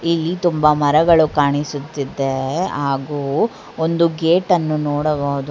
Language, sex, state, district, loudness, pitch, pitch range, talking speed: Kannada, female, Karnataka, Bangalore, -18 LUFS, 150 Hz, 145-165 Hz, 100 wpm